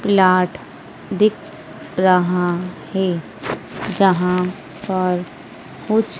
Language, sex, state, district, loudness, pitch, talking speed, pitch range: Hindi, female, Madhya Pradesh, Dhar, -19 LUFS, 185 Hz, 70 wpm, 180-195 Hz